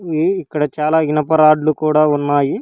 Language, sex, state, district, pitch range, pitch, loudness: Telugu, female, Telangana, Hyderabad, 150-160 Hz, 155 Hz, -15 LUFS